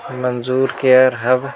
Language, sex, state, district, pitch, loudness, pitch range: Hindi, male, Bihar, Gaya, 130 Hz, -15 LUFS, 125-130 Hz